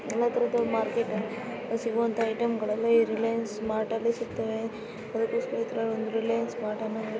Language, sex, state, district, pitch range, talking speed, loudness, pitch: Kannada, female, Karnataka, Dharwad, 220-235 Hz, 90 wpm, -29 LUFS, 230 Hz